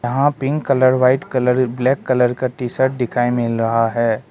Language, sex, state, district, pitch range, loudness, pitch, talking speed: Hindi, male, Arunachal Pradesh, Lower Dibang Valley, 120-130 Hz, -17 LUFS, 125 Hz, 195 wpm